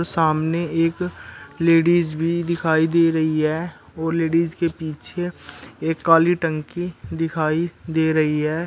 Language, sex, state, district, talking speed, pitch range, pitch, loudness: Hindi, male, Uttar Pradesh, Shamli, 130 wpm, 160-170 Hz, 165 Hz, -21 LUFS